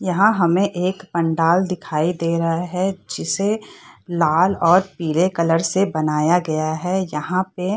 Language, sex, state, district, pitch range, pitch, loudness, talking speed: Hindi, female, Bihar, Saharsa, 165-190 Hz, 175 Hz, -19 LUFS, 155 wpm